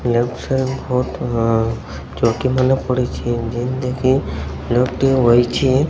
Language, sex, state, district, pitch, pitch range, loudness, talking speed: Odia, male, Odisha, Sambalpur, 125 Hz, 115-130 Hz, -18 LUFS, 90 wpm